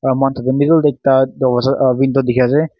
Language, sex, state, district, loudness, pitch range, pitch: Nagamese, male, Nagaland, Kohima, -14 LUFS, 130-135 Hz, 135 Hz